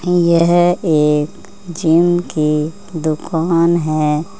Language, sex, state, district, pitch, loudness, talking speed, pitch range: Hindi, female, Uttar Pradesh, Saharanpur, 165 Hz, -15 LUFS, 80 wpm, 155-175 Hz